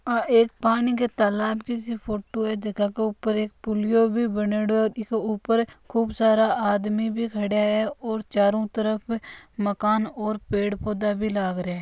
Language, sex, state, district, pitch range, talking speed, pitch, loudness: Marwari, female, Rajasthan, Nagaur, 210-230 Hz, 180 wpm, 215 Hz, -24 LUFS